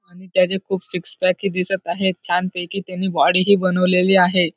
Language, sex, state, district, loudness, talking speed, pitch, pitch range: Marathi, male, Maharashtra, Dhule, -19 LUFS, 185 wpm, 185 Hz, 180-190 Hz